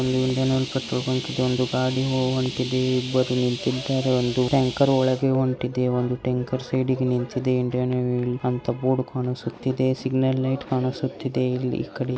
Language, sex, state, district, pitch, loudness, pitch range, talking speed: Kannada, male, Karnataka, Dharwad, 130 Hz, -24 LUFS, 125-130 Hz, 130 wpm